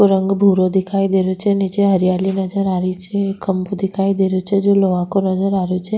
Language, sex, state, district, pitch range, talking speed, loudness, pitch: Rajasthani, female, Rajasthan, Nagaur, 185-195 Hz, 250 wpm, -17 LUFS, 195 Hz